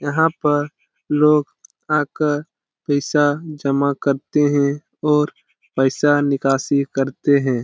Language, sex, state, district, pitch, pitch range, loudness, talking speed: Hindi, male, Bihar, Lakhisarai, 145 Hz, 140-150 Hz, -19 LUFS, 100 wpm